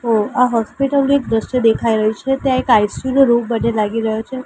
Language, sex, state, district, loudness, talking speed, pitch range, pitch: Gujarati, female, Gujarat, Gandhinagar, -16 LUFS, 240 wpm, 220-260 Hz, 235 Hz